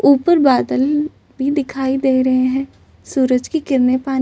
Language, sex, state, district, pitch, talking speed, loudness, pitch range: Hindi, female, Maharashtra, Chandrapur, 265 Hz, 155 wpm, -16 LUFS, 260-280 Hz